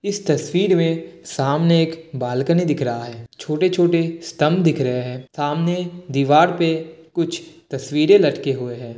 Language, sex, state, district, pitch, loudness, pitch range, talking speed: Hindi, male, Bihar, Kishanganj, 160 Hz, -19 LUFS, 135-170 Hz, 145 wpm